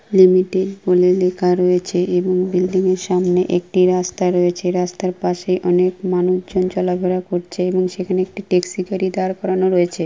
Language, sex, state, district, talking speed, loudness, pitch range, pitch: Bengali, female, West Bengal, Kolkata, 145 wpm, -17 LUFS, 180-185 Hz, 185 Hz